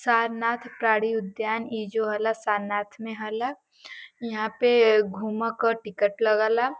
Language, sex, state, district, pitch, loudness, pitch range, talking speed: Bhojpuri, female, Uttar Pradesh, Varanasi, 225 Hz, -25 LUFS, 215-230 Hz, 150 wpm